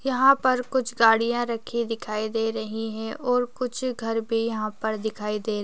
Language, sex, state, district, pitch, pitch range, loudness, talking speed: Hindi, female, Chhattisgarh, Jashpur, 225 Hz, 220-245 Hz, -25 LUFS, 190 wpm